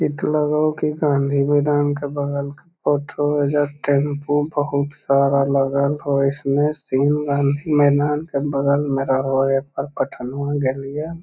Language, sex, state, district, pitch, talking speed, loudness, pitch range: Magahi, male, Bihar, Lakhisarai, 145 Hz, 150 wpm, -20 LUFS, 140-145 Hz